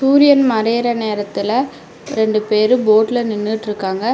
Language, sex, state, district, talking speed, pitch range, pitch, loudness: Tamil, female, Tamil Nadu, Namakkal, 100 wpm, 215-250 Hz, 220 Hz, -16 LUFS